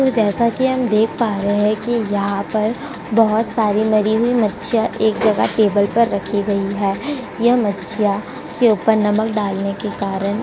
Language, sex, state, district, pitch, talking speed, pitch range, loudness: Hindi, female, Uttar Pradesh, Jyotiba Phule Nagar, 215 Hz, 185 wpm, 205-230 Hz, -17 LUFS